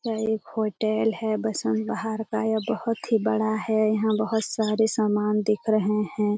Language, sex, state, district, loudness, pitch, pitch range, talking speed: Hindi, female, Bihar, Jamui, -25 LUFS, 220 Hz, 215-220 Hz, 180 wpm